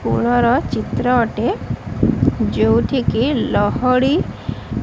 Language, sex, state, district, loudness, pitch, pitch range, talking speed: Odia, female, Odisha, Sambalpur, -17 LUFS, 250 Hz, 240-255 Hz, 75 wpm